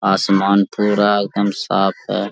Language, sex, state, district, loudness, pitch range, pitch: Hindi, male, Jharkhand, Sahebganj, -17 LUFS, 95-105 Hz, 100 Hz